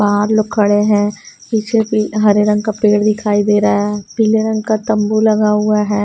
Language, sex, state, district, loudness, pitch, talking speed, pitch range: Hindi, female, Haryana, Rohtak, -14 LUFS, 210 Hz, 210 wpm, 210-215 Hz